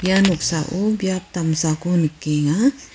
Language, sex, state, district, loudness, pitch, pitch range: Garo, female, Meghalaya, West Garo Hills, -20 LUFS, 175 Hz, 155-190 Hz